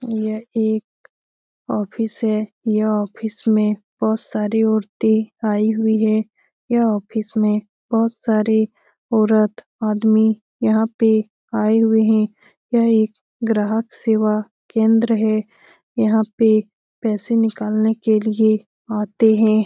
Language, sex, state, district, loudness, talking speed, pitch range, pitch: Hindi, female, Bihar, Lakhisarai, -19 LUFS, 120 wpm, 215-225 Hz, 220 Hz